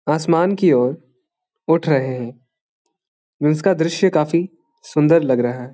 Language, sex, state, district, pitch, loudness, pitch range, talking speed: Hindi, male, Bihar, Bhagalpur, 160 Hz, -18 LUFS, 130-170 Hz, 135 wpm